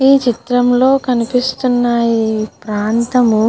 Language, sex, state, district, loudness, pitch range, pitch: Telugu, female, Andhra Pradesh, Guntur, -14 LUFS, 225-250 Hz, 245 Hz